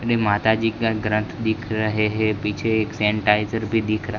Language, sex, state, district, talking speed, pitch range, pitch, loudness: Hindi, male, Gujarat, Gandhinagar, 200 wpm, 105-110 Hz, 110 Hz, -21 LUFS